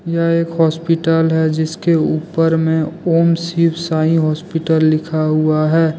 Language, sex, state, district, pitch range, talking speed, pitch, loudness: Hindi, male, Jharkhand, Deoghar, 160-165 Hz, 140 wpm, 165 Hz, -15 LUFS